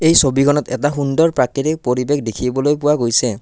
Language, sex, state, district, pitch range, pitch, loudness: Assamese, male, Assam, Kamrup Metropolitan, 125-150 Hz, 140 Hz, -16 LUFS